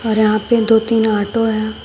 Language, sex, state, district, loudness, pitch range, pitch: Hindi, female, Uttar Pradesh, Shamli, -15 LUFS, 215-225 Hz, 220 Hz